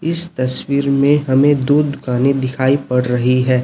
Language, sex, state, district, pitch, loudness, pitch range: Hindi, male, Chhattisgarh, Raipur, 135 Hz, -15 LUFS, 130-145 Hz